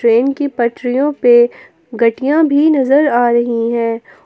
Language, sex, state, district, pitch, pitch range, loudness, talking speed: Hindi, female, Jharkhand, Palamu, 240 Hz, 235-285 Hz, -13 LUFS, 140 wpm